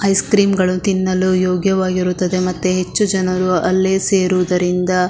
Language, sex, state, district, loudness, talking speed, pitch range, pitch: Kannada, female, Karnataka, Shimoga, -16 LUFS, 130 wpm, 180-190 Hz, 185 Hz